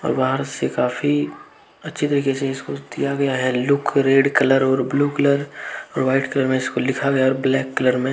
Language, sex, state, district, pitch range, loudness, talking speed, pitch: Hindi, male, Jharkhand, Deoghar, 130-140 Hz, -20 LUFS, 200 wpm, 135 Hz